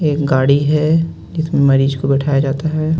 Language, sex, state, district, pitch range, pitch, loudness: Hindi, male, Jharkhand, Ranchi, 135-155 Hz, 145 Hz, -15 LUFS